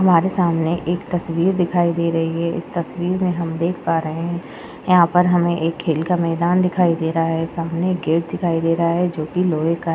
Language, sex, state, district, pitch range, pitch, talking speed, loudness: Hindi, female, Uttar Pradesh, Jyotiba Phule Nagar, 165-175 Hz, 170 Hz, 230 wpm, -19 LUFS